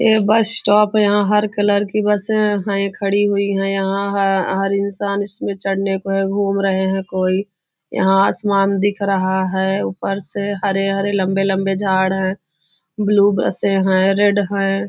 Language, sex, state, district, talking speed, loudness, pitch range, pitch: Hindi, female, Maharashtra, Nagpur, 160 wpm, -17 LUFS, 195-205 Hz, 195 Hz